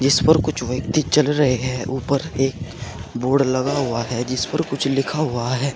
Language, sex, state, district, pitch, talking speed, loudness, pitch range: Hindi, male, Uttar Pradesh, Saharanpur, 135 Hz, 200 wpm, -20 LUFS, 125-145 Hz